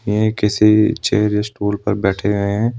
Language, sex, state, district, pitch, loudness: Hindi, male, Uttar Pradesh, Saharanpur, 105 Hz, -17 LUFS